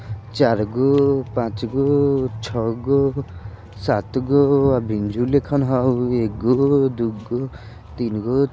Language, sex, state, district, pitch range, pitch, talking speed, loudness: Bajjika, male, Bihar, Vaishali, 110-140 Hz, 125 Hz, 85 wpm, -20 LUFS